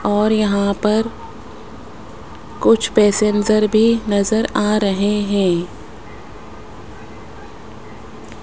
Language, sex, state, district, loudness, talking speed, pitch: Hindi, male, Rajasthan, Jaipur, -16 LUFS, 70 wpm, 200 Hz